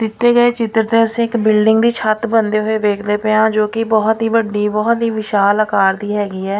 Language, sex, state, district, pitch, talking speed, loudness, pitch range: Punjabi, female, Punjab, Pathankot, 220 Hz, 235 wpm, -15 LUFS, 210-225 Hz